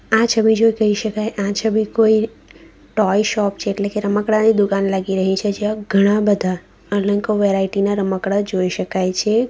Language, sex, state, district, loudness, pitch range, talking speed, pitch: Gujarati, female, Gujarat, Valsad, -18 LUFS, 195-215 Hz, 175 wpm, 205 Hz